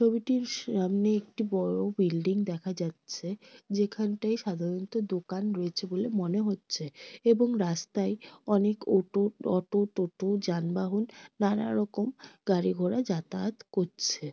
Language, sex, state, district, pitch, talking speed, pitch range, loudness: Bengali, female, West Bengal, North 24 Parganas, 200 Hz, 115 wpm, 185-210 Hz, -30 LUFS